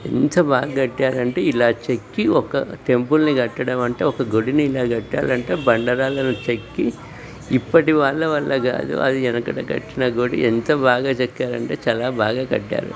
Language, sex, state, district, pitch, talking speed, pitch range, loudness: Telugu, female, Telangana, Nalgonda, 125 Hz, 150 wpm, 120-135 Hz, -20 LUFS